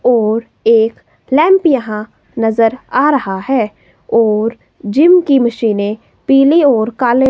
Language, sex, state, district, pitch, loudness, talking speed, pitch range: Hindi, female, Himachal Pradesh, Shimla, 235 Hz, -13 LUFS, 125 wpm, 220-275 Hz